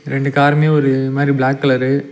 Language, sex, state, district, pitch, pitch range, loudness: Tamil, male, Tamil Nadu, Nilgiris, 140 Hz, 135-145 Hz, -15 LUFS